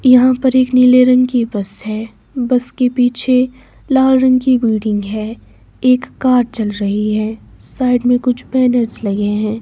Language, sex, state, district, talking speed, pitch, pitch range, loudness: Hindi, female, Himachal Pradesh, Shimla, 170 wpm, 245 Hz, 215-255 Hz, -14 LUFS